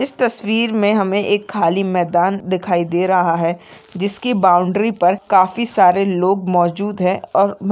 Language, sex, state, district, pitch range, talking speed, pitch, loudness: Hindi, female, Maharashtra, Nagpur, 180-205 Hz, 155 wpm, 195 Hz, -16 LUFS